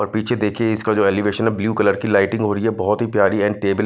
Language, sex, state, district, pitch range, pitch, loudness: Hindi, male, Punjab, Fazilka, 105-110 Hz, 105 Hz, -18 LUFS